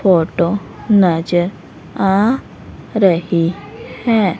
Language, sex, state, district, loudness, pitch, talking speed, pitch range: Hindi, female, Haryana, Rohtak, -16 LUFS, 185 Hz, 70 wpm, 170-205 Hz